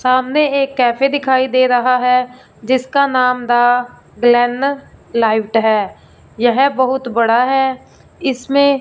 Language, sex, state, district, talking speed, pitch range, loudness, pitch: Hindi, female, Punjab, Fazilka, 120 wpm, 240-270 Hz, -15 LUFS, 255 Hz